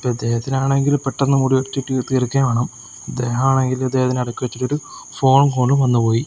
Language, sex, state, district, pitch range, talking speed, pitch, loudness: Malayalam, male, Kerala, Kozhikode, 125-135 Hz, 125 wpm, 130 Hz, -18 LUFS